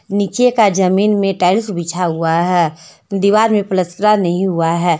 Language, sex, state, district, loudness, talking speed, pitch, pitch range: Hindi, female, Jharkhand, Deoghar, -15 LUFS, 170 wpm, 185 Hz, 175-205 Hz